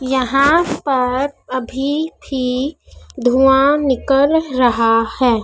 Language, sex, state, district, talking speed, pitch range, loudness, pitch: Hindi, female, Madhya Pradesh, Dhar, 90 wpm, 250-285 Hz, -16 LUFS, 265 Hz